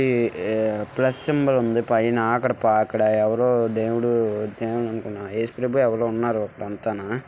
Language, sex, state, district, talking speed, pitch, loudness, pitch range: Telugu, male, Andhra Pradesh, Visakhapatnam, 130 wpm, 115 Hz, -22 LUFS, 110-120 Hz